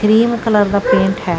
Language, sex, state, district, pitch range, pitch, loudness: Punjabi, female, Karnataka, Bangalore, 190-220 Hz, 210 Hz, -14 LUFS